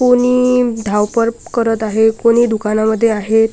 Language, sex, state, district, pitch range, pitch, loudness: Marathi, female, Maharashtra, Washim, 220-240 Hz, 225 Hz, -14 LUFS